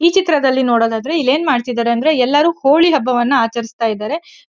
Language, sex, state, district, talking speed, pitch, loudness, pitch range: Kannada, female, Karnataka, Chamarajanagar, 185 wpm, 260 Hz, -15 LUFS, 235-310 Hz